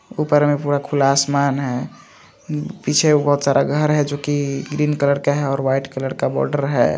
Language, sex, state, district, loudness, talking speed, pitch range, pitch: Hindi, male, Andhra Pradesh, Visakhapatnam, -19 LUFS, 200 wpm, 135-150 Hz, 145 Hz